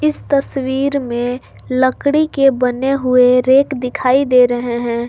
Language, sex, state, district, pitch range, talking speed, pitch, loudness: Hindi, female, Jharkhand, Garhwa, 250-275 Hz, 140 wpm, 255 Hz, -15 LUFS